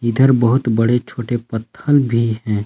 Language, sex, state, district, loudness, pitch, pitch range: Hindi, male, Jharkhand, Palamu, -16 LUFS, 120 Hz, 115-130 Hz